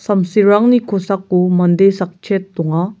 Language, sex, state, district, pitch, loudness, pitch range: Garo, male, Meghalaya, South Garo Hills, 195 Hz, -14 LUFS, 180-205 Hz